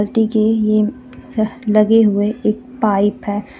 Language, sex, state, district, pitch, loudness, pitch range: Hindi, female, Jharkhand, Deoghar, 215 Hz, -16 LUFS, 210-225 Hz